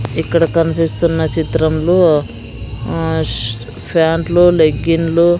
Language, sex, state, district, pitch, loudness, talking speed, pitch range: Telugu, female, Andhra Pradesh, Sri Satya Sai, 160 Hz, -14 LUFS, 80 wpm, 125-165 Hz